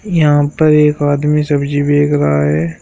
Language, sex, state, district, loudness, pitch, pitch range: Hindi, male, Uttar Pradesh, Shamli, -13 LUFS, 145 Hz, 140-150 Hz